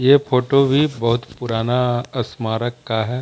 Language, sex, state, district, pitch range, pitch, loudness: Hindi, male, Bihar, Jamui, 115-135 Hz, 120 Hz, -19 LUFS